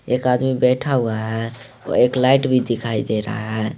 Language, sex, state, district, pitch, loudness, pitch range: Hindi, male, Jharkhand, Garhwa, 125 Hz, -19 LUFS, 110-130 Hz